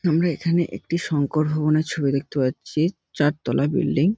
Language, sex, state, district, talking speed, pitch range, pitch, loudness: Bengali, male, West Bengal, North 24 Parganas, 170 wpm, 145-170 Hz, 155 Hz, -23 LUFS